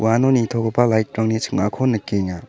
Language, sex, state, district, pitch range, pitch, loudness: Garo, male, Meghalaya, South Garo Hills, 105-120 Hz, 110 Hz, -19 LUFS